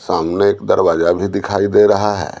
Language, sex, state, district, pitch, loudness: Hindi, male, Bihar, Patna, 100 Hz, -15 LUFS